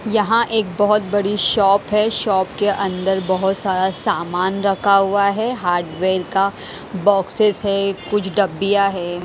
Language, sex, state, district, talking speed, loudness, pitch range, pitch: Hindi, female, Haryana, Jhajjar, 145 wpm, -17 LUFS, 190-205 Hz, 195 Hz